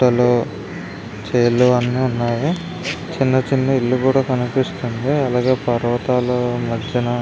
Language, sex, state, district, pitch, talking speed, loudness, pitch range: Telugu, male, Andhra Pradesh, Visakhapatnam, 125 Hz, 110 wpm, -18 LUFS, 120-130 Hz